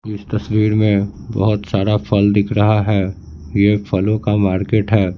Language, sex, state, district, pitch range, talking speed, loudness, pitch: Hindi, male, Bihar, Patna, 100-105 Hz, 160 wpm, -16 LUFS, 105 Hz